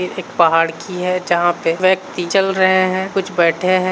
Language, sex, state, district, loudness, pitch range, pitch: Hindi, male, Bihar, Saharsa, -16 LUFS, 175-185 Hz, 180 Hz